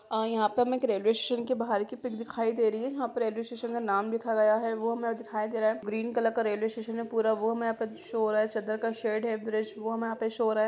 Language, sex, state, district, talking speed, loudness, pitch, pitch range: Hindi, female, Jharkhand, Sahebganj, 320 wpm, -30 LUFS, 225 Hz, 220-230 Hz